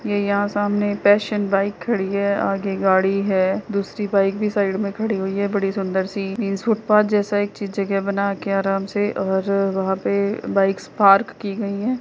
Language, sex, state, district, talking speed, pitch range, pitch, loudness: Hindi, female, Uttar Pradesh, Hamirpur, 190 wpm, 195-205 Hz, 200 Hz, -20 LUFS